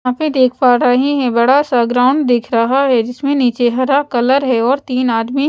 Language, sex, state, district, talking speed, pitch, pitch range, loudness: Hindi, female, Odisha, Sambalpur, 220 wpm, 255 Hz, 245-275 Hz, -13 LUFS